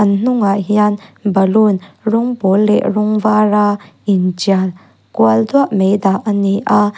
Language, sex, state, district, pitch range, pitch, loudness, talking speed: Mizo, female, Mizoram, Aizawl, 195-210 Hz, 205 Hz, -14 LUFS, 145 wpm